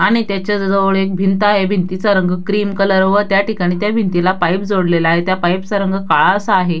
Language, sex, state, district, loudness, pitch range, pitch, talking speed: Marathi, female, Maharashtra, Dhule, -15 LUFS, 185-205 Hz, 195 Hz, 220 wpm